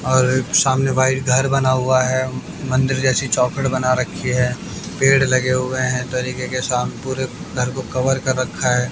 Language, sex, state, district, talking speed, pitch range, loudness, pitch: Hindi, male, Haryana, Jhajjar, 180 wpm, 125-130 Hz, -18 LUFS, 130 Hz